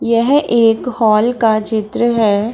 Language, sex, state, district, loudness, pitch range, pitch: Hindi, female, Bihar, Samastipur, -14 LUFS, 215-235 Hz, 230 Hz